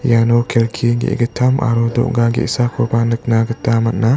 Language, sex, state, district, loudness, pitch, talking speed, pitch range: Garo, male, Meghalaya, West Garo Hills, -16 LUFS, 115 Hz, 130 wpm, 115-120 Hz